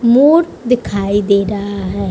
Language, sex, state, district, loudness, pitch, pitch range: Hindi, female, Uttar Pradesh, Budaun, -14 LUFS, 205 Hz, 200-245 Hz